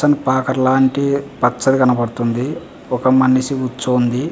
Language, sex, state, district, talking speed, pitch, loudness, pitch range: Telugu, male, Andhra Pradesh, Visakhapatnam, 85 wpm, 130 Hz, -16 LUFS, 125-135 Hz